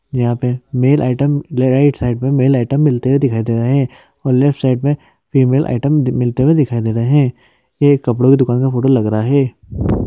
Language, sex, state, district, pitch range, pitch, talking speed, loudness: Hindi, male, Uttar Pradesh, Deoria, 125-140 Hz, 130 Hz, 225 wpm, -15 LUFS